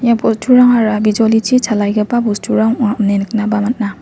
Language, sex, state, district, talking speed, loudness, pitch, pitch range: Garo, female, Meghalaya, West Garo Hills, 135 wpm, -13 LUFS, 220 Hz, 210-235 Hz